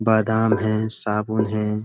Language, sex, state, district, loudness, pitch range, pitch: Hindi, male, Uttar Pradesh, Budaun, -20 LUFS, 105-110 Hz, 110 Hz